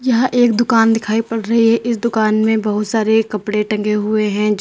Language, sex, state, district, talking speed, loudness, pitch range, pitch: Hindi, female, Uttar Pradesh, Lalitpur, 220 wpm, -15 LUFS, 210-230 Hz, 220 Hz